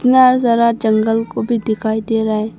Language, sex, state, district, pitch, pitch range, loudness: Hindi, female, Arunachal Pradesh, Longding, 225 Hz, 220-235 Hz, -15 LUFS